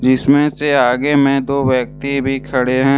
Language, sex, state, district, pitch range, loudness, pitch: Hindi, male, Jharkhand, Deoghar, 130-140 Hz, -15 LUFS, 140 Hz